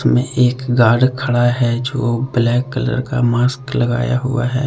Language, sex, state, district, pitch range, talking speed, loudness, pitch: Hindi, male, Jharkhand, Deoghar, 120-130 Hz, 165 wpm, -16 LUFS, 125 Hz